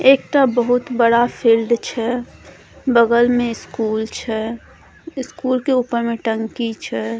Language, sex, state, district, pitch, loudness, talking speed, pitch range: Maithili, female, Bihar, Saharsa, 235 Hz, -18 LUFS, 125 wpm, 225-250 Hz